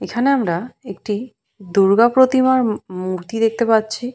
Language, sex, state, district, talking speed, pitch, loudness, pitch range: Bengali, female, West Bengal, Purulia, 130 wpm, 225 Hz, -17 LUFS, 195-250 Hz